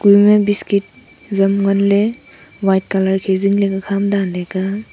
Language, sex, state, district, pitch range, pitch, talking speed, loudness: Wancho, female, Arunachal Pradesh, Longding, 190-200 Hz, 200 Hz, 135 wpm, -15 LUFS